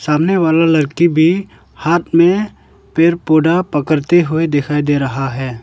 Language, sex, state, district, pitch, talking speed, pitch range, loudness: Hindi, male, Arunachal Pradesh, Lower Dibang Valley, 160 Hz, 150 wpm, 145-170 Hz, -14 LUFS